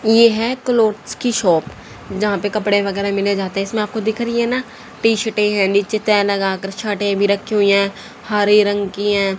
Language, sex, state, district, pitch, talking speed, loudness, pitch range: Hindi, female, Haryana, Jhajjar, 205 Hz, 210 wpm, -17 LUFS, 200-220 Hz